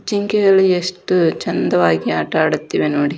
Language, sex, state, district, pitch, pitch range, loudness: Kannada, female, Karnataka, Dharwad, 185 Hz, 165-200 Hz, -16 LUFS